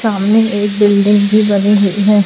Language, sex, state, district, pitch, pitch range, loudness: Hindi, female, Chhattisgarh, Raipur, 205 Hz, 200-210 Hz, -11 LUFS